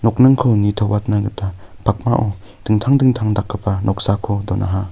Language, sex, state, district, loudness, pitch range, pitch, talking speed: Garo, male, Meghalaya, North Garo Hills, -17 LUFS, 100-110 Hz, 105 Hz, 110 wpm